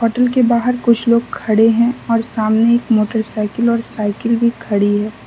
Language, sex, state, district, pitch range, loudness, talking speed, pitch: Hindi, female, Mizoram, Aizawl, 215-235 Hz, -15 LUFS, 180 wpm, 230 Hz